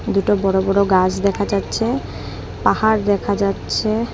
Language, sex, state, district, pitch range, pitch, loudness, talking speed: Bengali, female, Assam, Hailakandi, 185-205 Hz, 200 Hz, -18 LUFS, 130 wpm